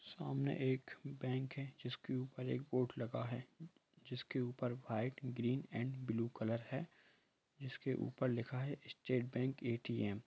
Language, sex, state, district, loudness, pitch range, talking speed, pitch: Hindi, male, Jharkhand, Sahebganj, -43 LUFS, 120-135 Hz, 145 wpm, 130 Hz